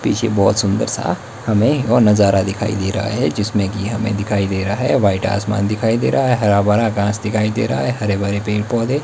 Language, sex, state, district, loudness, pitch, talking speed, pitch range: Hindi, male, Himachal Pradesh, Shimla, -17 LUFS, 105 Hz, 230 wpm, 100-115 Hz